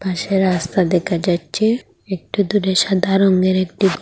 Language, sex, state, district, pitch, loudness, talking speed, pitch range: Bengali, female, Assam, Hailakandi, 190 Hz, -17 LUFS, 150 wpm, 180-195 Hz